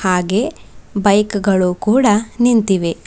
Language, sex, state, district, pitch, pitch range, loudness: Kannada, female, Karnataka, Bidar, 205 Hz, 190-225 Hz, -15 LUFS